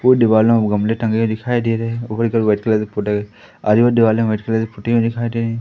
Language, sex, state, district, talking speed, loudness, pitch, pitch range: Hindi, male, Madhya Pradesh, Katni, 190 wpm, -17 LUFS, 115 Hz, 110-115 Hz